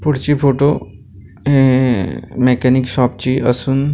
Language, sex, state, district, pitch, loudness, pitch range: Marathi, male, Maharashtra, Gondia, 130 Hz, -15 LUFS, 120-140 Hz